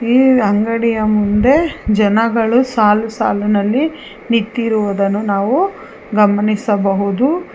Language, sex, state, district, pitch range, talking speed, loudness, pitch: Kannada, female, Karnataka, Bangalore, 210-250 Hz, 70 wpm, -14 LUFS, 220 Hz